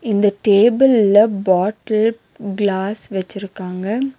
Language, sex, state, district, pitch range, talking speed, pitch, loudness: Tamil, female, Tamil Nadu, Nilgiris, 195-220 Hz, 70 wpm, 205 Hz, -16 LUFS